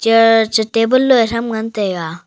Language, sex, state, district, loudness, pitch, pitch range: Wancho, male, Arunachal Pradesh, Longding, -14 LUFS, 225 Hz, 220-230 Hz